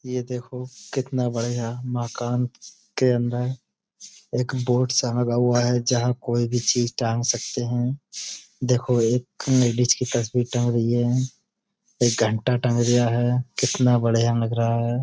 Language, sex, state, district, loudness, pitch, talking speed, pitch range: Hindi, male, Uttar Pradesh, Budaun, -23 LUFS, 120 Hz, 150 wpm, 120-125 Hz